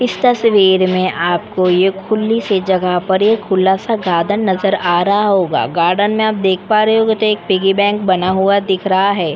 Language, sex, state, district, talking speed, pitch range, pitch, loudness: Hindi, female, Maharashtra, Chandrapur, 205 wpm, 185-210 Hz, 195 Hz, -14 LUFS